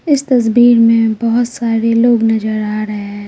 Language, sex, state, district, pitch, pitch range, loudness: Hindi, female, Bihar, Patna, 230 Hz, 220-240 Hz, -12 LUFS